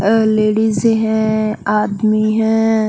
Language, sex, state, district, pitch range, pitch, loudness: Hindi, female, Chandigarh, Chandigarh, 215-220 Hz, 215 Hz, -15 LUFS